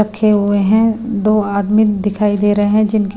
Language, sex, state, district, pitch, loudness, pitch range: Hindi, female, Himachal Pradesh, Shimla, 210 Hz, -14 LUFS, 205-215 Hz